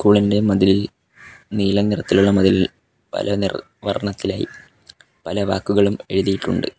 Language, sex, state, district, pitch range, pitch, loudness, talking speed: Malayalam, male, Kerala, Kollam, 95-100 Hz, 100 Hz, -19 LUFS, 105 wpm